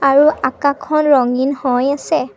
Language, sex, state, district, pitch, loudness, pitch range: Assamese, female, Assam, Kamrup Metropolitan, 275 Hz, -15 LUFS, 255-285 Hz